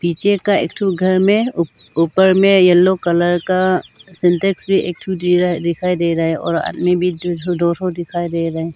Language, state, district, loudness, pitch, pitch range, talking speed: Hindi, Arunachal Pradesh, Lower Dibang Valley, -16 LUFS, 180 Hz, 170-185 Hz, 225 wpm